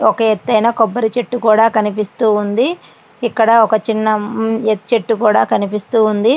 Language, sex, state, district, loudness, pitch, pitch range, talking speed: Telugu, female, Andhra Pradesh, Srikakulam, -14 LUFS, 220 Hz, 215-230 Hz, 130 wpm